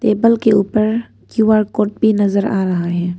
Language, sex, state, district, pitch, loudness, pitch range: Hindi, female, Arunachal Pradesh, Papum Pare, 210 Hz, -15 LUFS, 200-220 Hz